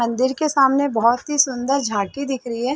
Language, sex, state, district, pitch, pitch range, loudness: Hindi, female, Uttar Pradesh, Varanasi, 260 Hz, 235-275 Hz, -19 LUFS